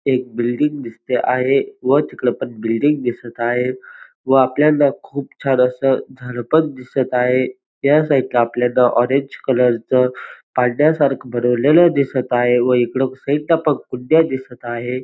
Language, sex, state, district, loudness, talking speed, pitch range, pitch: Marathi, male, Maharashtra, Dhule, -17 LUFS, 150 wpm, 125-140 Hz, 130 Hz